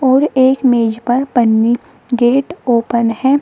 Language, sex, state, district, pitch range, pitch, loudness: Hindi, female, Uttar Pradesh, Shamli, 235-265 Hz, 245 Hz, -14 LUFS